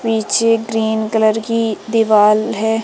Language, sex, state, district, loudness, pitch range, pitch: Hindi, female, Madhya Pradesh, Umaria, -15 LUFS, 220-225 Hz, 220 Hz